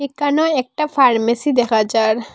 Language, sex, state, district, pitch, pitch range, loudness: Bengali, female, Assam, Hailakandi, 255 Hz, 225-290 Hz, -16 LUFS